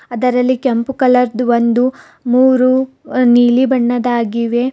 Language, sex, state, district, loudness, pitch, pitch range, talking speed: Kannada, female, Karnataka, Bidar, -13 LUFS, 250 Hz, 240-255 Hz, 90 wpm